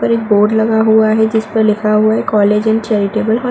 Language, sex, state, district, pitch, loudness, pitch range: Hindi, female, Uttar Pradesh, Muzaffarnagar, 220 Hz, -12 LUFS, 215-220 Hz